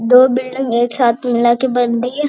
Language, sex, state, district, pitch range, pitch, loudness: Hindi, male, Uttarakhand, Uttarkashi, 240-255 Hz, 245 Hz, -14 LUFS